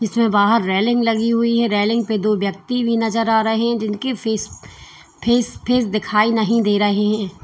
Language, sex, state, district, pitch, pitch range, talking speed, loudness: Hindi, female, Uttar Pradesh, Lalitpur, 225 Hz, 210-230 Hz, 195 wpm, -18 LUFS